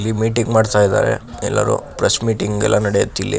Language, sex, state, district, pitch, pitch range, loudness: Kannada, male, Karnataka, Shimoga, 110 Hz, 105-110 Hz, -17 LUFS